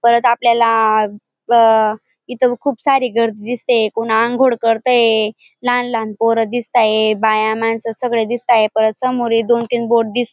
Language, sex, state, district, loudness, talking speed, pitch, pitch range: Marathi, female, Maharashtra, Dhule, -15 LUFS, 150 wpm, 230 Hz, 220-245 Hz